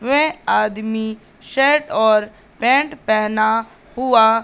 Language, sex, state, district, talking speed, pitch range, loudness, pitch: Hindi, female, Madhya Pradesh, Katni, 95 wpm, 215-270 Hz, -17 LUFS, 225 Hz